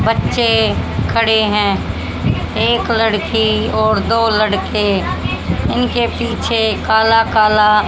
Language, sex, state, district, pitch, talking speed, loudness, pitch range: Hindi, female, Haryana, Jhajjar, 215 Hz, 90 wpm, -15 LUFS, 210-225 Hz